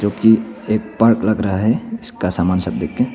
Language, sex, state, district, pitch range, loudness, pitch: Hindi, male, Arunachal Pradesh, Papum Pare, 105-115 Hz, -17 LUFS, 110 Hz